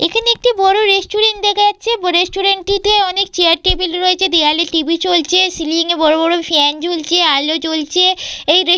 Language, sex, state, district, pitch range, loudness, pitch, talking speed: Bengali, female, West Bengal, Purulia, 330-390 Hz, -13 LUFS, 360 Hz, 180 wpm